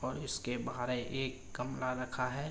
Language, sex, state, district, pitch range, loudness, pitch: Hindi, male, Uttar Pradesh, Jalaun, 125-130 Hz, -38 LUFS, 125 Hz